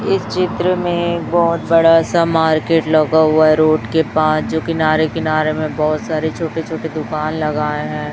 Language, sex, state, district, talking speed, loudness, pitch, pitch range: Hindi, male, Chhattisgarh, Raipur, 175 wpm, -16 LUFS, 160 Hz, 155-165 Hz